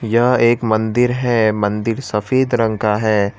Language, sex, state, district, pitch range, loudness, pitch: Hindi, male, Gujarat, Valsad, 105-120 Hz, -16 LUFS, 115 Hz